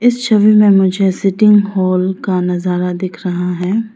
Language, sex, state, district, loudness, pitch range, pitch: Hindi, female, Arunachal Pradesh, Lower Dibang Valley, -13 LUFS, 180-210 Hz, 190 Hz